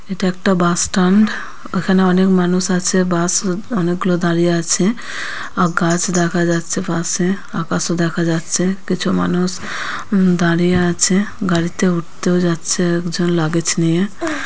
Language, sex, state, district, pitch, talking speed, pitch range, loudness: Bengali, female, West Bengal, Purulia, 180 Hz, 130 wpm, 170-190 Hz, -16 LUFS